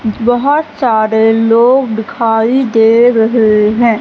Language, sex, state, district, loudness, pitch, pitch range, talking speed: Hindi, female, Madhya Pradesh, Katni, -10 LUFS, 225 Hz, 220-245 Hz, 105 wpm